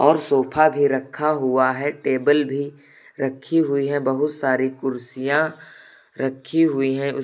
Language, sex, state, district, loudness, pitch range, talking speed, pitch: Hindi, male, Uttar Pradesh, Lucknow, -21 LUFS, 135-150 Hz, 140 wpm, 140 Hz